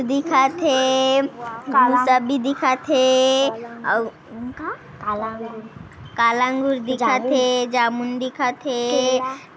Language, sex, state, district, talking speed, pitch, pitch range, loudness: Hindi, female, Chhattisgarh, Kabirdham, 80 wpm, 255 Hz, 240-270 Hz, -19 LUFS